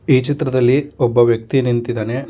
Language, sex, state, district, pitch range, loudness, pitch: Kannada, male, Karnataka, Koppal, 120-135 Hz, -16 LUFS, 125 Hz